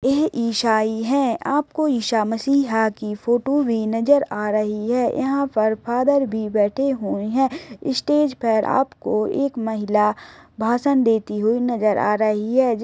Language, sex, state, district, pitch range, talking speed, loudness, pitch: Hindi, female, Uttar Pradesh, Deoria, 215-270 Hz, 150 wpm, -20 LUFS, 235 Hz